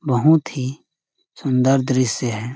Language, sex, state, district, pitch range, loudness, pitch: Hindi, male, Chhattisgarh, Sarguja, 125-150 Hz, -19 LUFS, 130 Hz